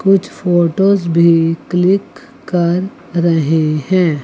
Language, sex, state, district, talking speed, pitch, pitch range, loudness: Hindi, female, Chandigarh, Chandigarh, 100 wpm, 175 Hz, 165-190 Hz, -14 LUFS